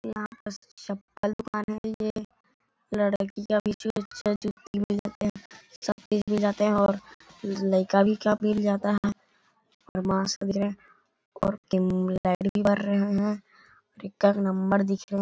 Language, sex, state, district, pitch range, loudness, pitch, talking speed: Hindi, male, Chhattisgarh, Bilaspur, 195-210 Hz, -27 LUFS, 205 Hz, 120 wpm